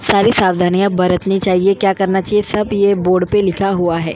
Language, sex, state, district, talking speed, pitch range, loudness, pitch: Hindi, female, Goa, North and South Goa, 185 wpm, 180-200 Hz, -14 LUFS, 195 Hz